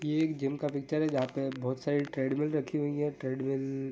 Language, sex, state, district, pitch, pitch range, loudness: Hindi, male, Jharkhand, Sahebganj, 140 Hz, 135-150 Hz, -32 LUFS